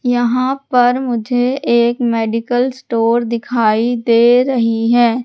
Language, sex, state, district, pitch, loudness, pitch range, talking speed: Hindi, female, Madhya Pradesh, Katni, 240 Hz, -14 LUFS, 230-245 Hz, 115 wpm